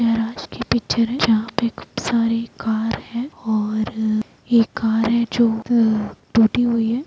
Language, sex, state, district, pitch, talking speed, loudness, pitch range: Hindi, female, Bihar, Saran, 230 Hz, 155 wpm, -20 LUFS, 220-235 Hz